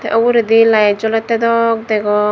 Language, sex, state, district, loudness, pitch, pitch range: Chakma, female, Tripura, Dhalai, -13 LUFS, 225 Hz, 215-230 Hz